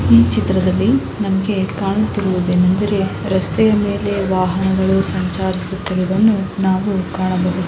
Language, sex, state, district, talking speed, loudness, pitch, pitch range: Kannada, female, Karnataka, Mysore, 80 wpm, -17 LUFS, 190 Hz, 185-195 Hz